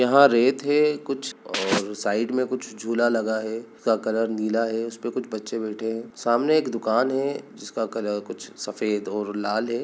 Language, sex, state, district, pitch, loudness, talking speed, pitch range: Hindi, male, Bihar, Sitamarhi, 115 Hz, -25 LUFS, 185 wpm, 110-130 Hz